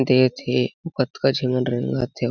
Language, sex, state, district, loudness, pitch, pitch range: Chhattisgarhi, male, Chhattisgarh, Jashpur, -22 LUFS, 130 Hz, 125-135 Hz